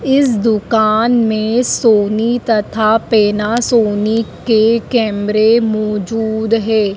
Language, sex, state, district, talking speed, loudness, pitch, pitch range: Hindi, female, Madhya Pradesh, Dhar, 85 wpm, -14 LUFS, 220 Hz, 215-230 Hz